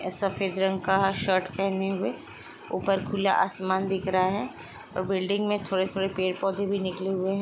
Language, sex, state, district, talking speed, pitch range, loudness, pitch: Hindi, female, Uttar Pradesh, Jalaun, 185 wpm, 190-195 Hz, -27 LUFS, 190 Hz